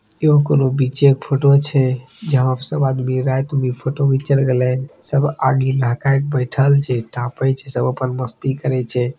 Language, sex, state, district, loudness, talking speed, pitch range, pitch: Maithili, male, Bihar, Begusarai, -17 LUFS, 185 wpm, 130-140 Hz, 130 Hz